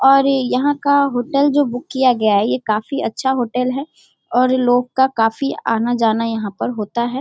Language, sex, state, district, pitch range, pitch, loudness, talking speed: Hindi, female, Bihar, Darbhanga, 230-275 Hz, 250 Hz, -17 LUFS, 190 wpm